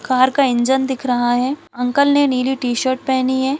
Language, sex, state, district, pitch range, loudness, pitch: Hindi, female, Chhattisgarh, Balrampur, 250-270 Hz, -17 LUFS, 260 Hz